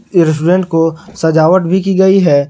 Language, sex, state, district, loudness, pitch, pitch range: Hindi, male, Jharkhand, Garhwa, -11 LUFS, 180 Hz, 160-190 Hz